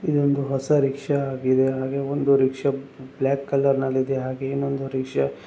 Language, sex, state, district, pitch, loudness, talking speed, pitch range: Kannada, male, Karnataka, Raichur, 135 Hz, -23 LUFS, 165 wpm, 130-140 Hz